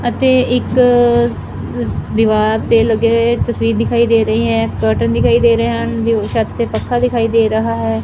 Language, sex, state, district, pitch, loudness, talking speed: Punjabi, female, Punjab, Fazilka, 220 Hz, -14 LUFS, 170 wpm